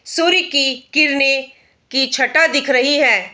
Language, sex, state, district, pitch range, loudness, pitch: Hindi, female, Bihar, Araria, 265-300 Hz, -14 LUFS, 275 Hz